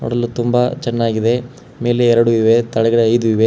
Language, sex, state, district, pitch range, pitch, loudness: Kannada, male, Karnataka, Koppal, 115-120 Hz, 120 Hz, -15 LUFS